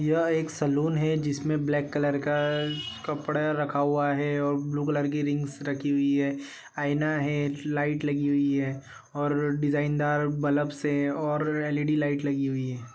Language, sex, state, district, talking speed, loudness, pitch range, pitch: Hindi, male, Bihar, Bhagalpur, 165 wpm, -27 LUFS, 145-150 Hz, 145 Hz